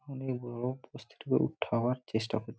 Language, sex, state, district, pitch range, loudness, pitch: Bengali, male, West Bengal, Malda, 110-130 Hz, -33 LUFS, 120 Hz